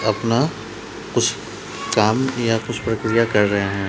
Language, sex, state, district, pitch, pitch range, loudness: Hindi, male, Bihar, Patna, 115 Hz, 105-115 Hz, -20 LUFS